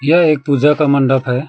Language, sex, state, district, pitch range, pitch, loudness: Hindi, male, West Bengal, Alipurduar, 135-150 Hz, 140 Hz, -13 LUFS